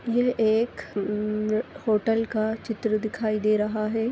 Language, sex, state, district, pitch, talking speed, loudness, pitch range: Hindi, female, Goa, North and South Goa, 220 Hz, 130 wpm, -25 LUFS, 215-225 Hz